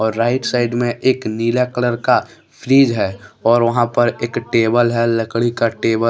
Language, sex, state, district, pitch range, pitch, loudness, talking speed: Hindi, male, Jharkhand, Deoghar, 115-120 Hz, 120 Hz, -17 LUFS, 195 wpm